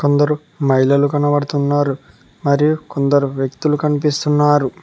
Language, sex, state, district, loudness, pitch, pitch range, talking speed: Telugu, male, Telangana, Mahabubabad, -16 LUFS, 145 Hz, 140-150 Hz, 85 wpm